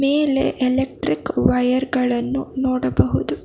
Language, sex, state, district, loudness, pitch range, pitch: Kannada, female, Karnataka, Bangalore, -20 LUFS, 245-270 Hz, 255 Hz